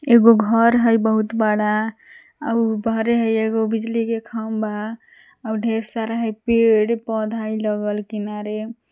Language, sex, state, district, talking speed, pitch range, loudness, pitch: Magahi, female, Jharkhand, Palamu, 150 wpm, 215-230 Hz, -20 LUFS, 225 Hz